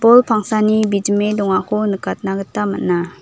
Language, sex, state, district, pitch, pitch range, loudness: Garo, female, Meghalaya, South Garo Hills, 205 Hz, 195-215 Hz, -17 LUFS